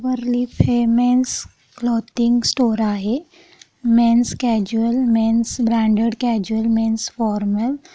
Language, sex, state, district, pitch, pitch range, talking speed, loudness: Marathi, female, Maharashtra, Pune, 235 Hz, 225-245 Hz, 115 wpm, -18 LUFS